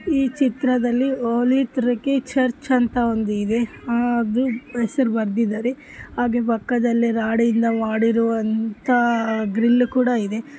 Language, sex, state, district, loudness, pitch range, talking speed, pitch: Kannada, female, Karnataka, Bellary, -20 LUFS, 230-255 Hz, 110 wpm, 240 Hz